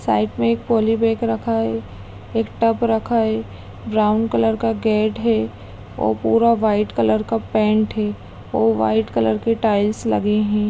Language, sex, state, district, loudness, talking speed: Hindi, female, Bihar, Sitamarhi, -19 LUFS, 170 wpm